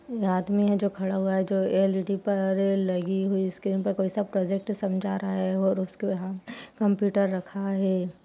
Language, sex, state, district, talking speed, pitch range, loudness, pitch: Hindi, female, Chhattisgarh, Rajnandgaon, 190 wpm, 190-200 Hz, -27 LUFS, 195 Hz